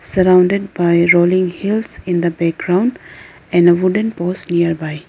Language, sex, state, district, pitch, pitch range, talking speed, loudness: English, female, Arunachal Pradesh, Lower Dibang Valley, 175 Hz, 170-185 Hz, 140 wpm, -15 LUFS